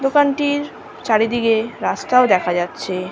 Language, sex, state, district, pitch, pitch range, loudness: Bengali, female, West Bengal, North 24 Parganas, 230 Hz, 185-275 Hz, -18 LUFS